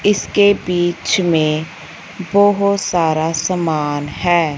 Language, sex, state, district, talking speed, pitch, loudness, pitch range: Hindi, female, Punjab, Fazilka, 90 wpm, 175 Hz, -16 LUFS, 160-200 Hz